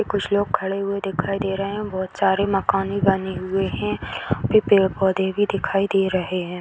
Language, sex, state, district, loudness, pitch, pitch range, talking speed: Hindi, female, Bihar, Bhagalpur, -22 LUFS, 195 Hz, 190-200 Hz, 245 wpm